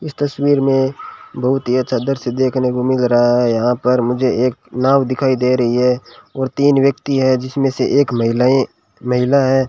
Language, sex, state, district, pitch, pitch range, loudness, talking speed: Hindi, male, Rajasthan, Bikaner, 130 Hz, 125-135 Hz, -16 LUFS, 190 wpm